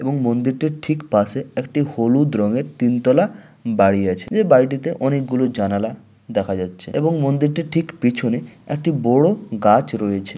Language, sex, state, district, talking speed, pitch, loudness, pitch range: Bengali, male, West Bengal, Malda, 145 wpm, 130 Hz, -19 LUFS, 110-150 Hz